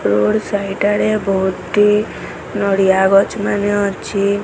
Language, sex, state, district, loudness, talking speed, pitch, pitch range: Odia, female, Odisha, Sambalpur, -16 LUFS, 120 wpm, 200 Hz, 195-205 Hz